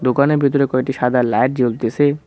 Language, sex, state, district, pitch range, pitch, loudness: Bengali, male, West Bengal, Cooch Behar, 125-140 Hz, 130 Hz, -17 LUFS